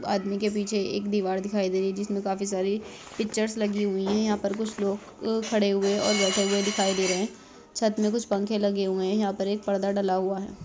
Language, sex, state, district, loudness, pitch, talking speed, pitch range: Hindi, male, Rajasthan, Churu, -26 LUFS, 200 Hz, 240 wpm, 195-210 Hz